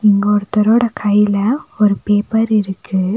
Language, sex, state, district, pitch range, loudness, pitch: Tamil, female, Tamil Nadu, Nilgiris, 205-220 Hz, -15 LUFS, 210 Hz